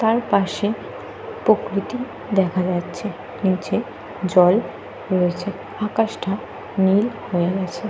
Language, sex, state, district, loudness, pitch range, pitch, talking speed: Bengali, female, Jharkhand, Jamtara, -21 LUFS, 185-215 Hz, 195 Hz, 90 wpm